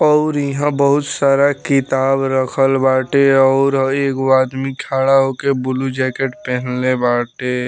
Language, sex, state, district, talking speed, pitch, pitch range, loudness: Bhojpuri, male, Bihar, Muzaffarpur, 125 wpm, 135 Hz, 130-140 Hz, -16 LUFS